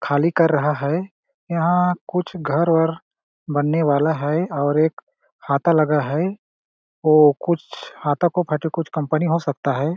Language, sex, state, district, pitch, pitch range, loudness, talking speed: Hindi, male, Chhattisgarh, Balrampur, 160 Hz, 150-170 Hz, -20 LUFS, 160 wpm